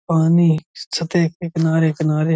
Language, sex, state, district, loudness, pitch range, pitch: Hindi, male, Uttar Pradesh, Budaun, -18 LUFS, 160-170 Hz, 165 Hz